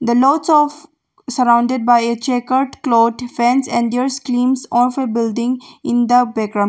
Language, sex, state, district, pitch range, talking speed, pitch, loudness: English, female, Arunachal Pradesh, Longding, 235-265 Hz, 170 wpm, 245 Hz, -16 LUFS